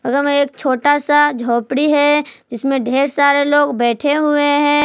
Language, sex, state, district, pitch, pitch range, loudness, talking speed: Hindi, female, Jharkhand, Palamu, 285 Hz, 265-290 Hz, -15 LUFS, 175 wpm